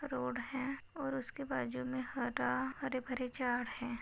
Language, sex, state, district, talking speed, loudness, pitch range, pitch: Hindi, female, Maharashtra, Nagpur, 150 wpm, -39 LUFS, 245-270 Hz, 255 Hz